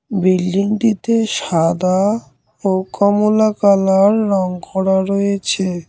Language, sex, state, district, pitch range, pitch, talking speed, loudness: Bengali, male, West Bengal, Cooch Behar, 185-210 Hz, 195 Hz, 80 wpm, -16 LUFS